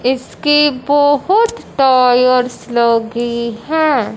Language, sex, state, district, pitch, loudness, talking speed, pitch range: Hindi, male, Punjab, Fazilka, 255 Hz, -13 LUFS, 70 wpm, 235-290 Hz